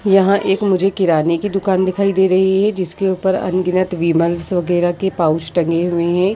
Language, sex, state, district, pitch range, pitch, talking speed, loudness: Hindi, female, Uttar Pradesh, Jyotiba Phule Nagar, 175-195 Hz, 185 Hz, 190 wpm, -16 LUFS